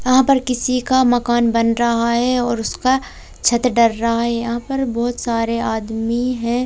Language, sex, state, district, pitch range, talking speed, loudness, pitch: Hindi, female, Bihar, Katihar, 230-250 Hz, 180 wpm, -17 LUFS, 240 Hz